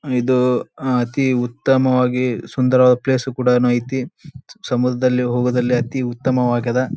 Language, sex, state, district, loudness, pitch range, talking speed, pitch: Kannada, male, Karnataka, Bijapur, -18 LUFS, 125-130 Hz, 105 wpm, 125 Hz